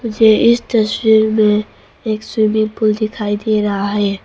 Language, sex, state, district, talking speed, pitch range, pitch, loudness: Hindi, female, Arunachal Pradesh, Papum Pare, 155 wpm, 210-220 Hz, 215 Hz, -15 LUFS